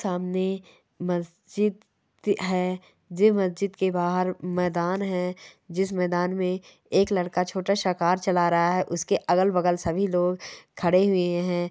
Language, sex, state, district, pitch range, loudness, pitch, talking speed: Hindi, female, Chhattisgarh, Balrampur, 175-190 Hz, -25 LUFS, 180 Hz, 145 wpm